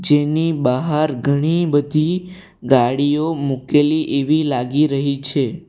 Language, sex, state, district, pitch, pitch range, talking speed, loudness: Gujarati, male, Gujarat, Valsad, 145 Hz, 140-155 Hz, 105 wpm, -18 LUFS